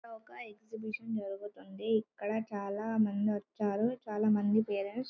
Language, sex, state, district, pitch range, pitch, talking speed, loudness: Telugu, female, Telangana, Karimnagar, 205-220 Hz, 215 Hz, 140 wpm, -34 LUFS